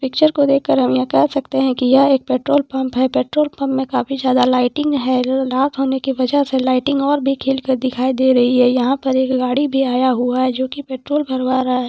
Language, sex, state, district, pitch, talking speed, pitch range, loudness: Hindi, female, Jharkhand, Jamtara, 260 Hz, 250 wpm, 255-275 Hz, -16 LUFS